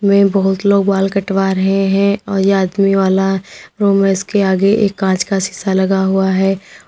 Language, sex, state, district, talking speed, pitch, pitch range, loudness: Hindi, female, Uttar Pradesh, Lalitpur, 190 wpm, 195 Hz, 190-200 Hz, -14 LUFS